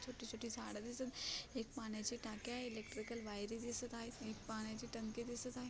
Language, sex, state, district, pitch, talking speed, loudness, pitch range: Marathi, female, Maharashtra, Solapur, 235 Hz, 170 wpm, -47 LUFS, 220-240 Hz